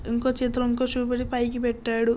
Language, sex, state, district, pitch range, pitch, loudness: Telugu, male, Andhra Pradesh, Srikakulam, 235-250 Hz, 245 Hz, -26 LUFS